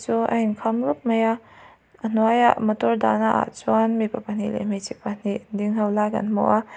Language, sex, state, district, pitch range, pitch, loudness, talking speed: Mizo, female, Mizoram, Aizawl, 205-230 Hz, 220 Hz, -22 LUFS, 195 wpm